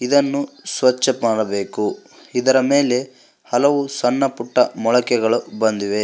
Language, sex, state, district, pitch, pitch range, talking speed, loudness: Kannada, male, Karnataka, Koppal, 125 Hz, 115-135 Hz, 90 wpm, -18 LUFS